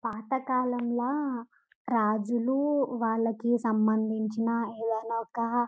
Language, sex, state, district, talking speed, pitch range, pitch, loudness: Telugu, female, Telangana, Karimnagar, 65 wpm, 225-245 Hz, 230 Hz, -29 LUFS